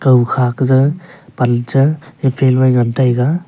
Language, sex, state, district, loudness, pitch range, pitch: Wancho, male, Arunachal Pradesh, Longding, -14 LUFS, 125-145 Hz, 130 Hz